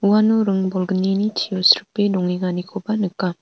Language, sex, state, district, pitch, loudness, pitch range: Garo, female, Meghalaya, North Garo Hills, 190 Hz, -19 LUFS, 185-205 Hz